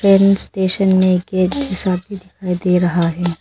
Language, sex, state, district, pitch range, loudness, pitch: Hindi, female, Arunachal Pradesh, Longding, 180-195 Hz, -16 LUFS, 185 Hz